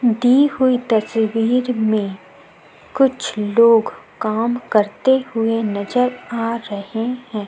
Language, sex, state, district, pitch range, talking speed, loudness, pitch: Hindi, female, Uttar Pradesh, Jyotiba Phule Nagar, 215-250 Hz, 105 wpm, -18 LUFS, 230 Hz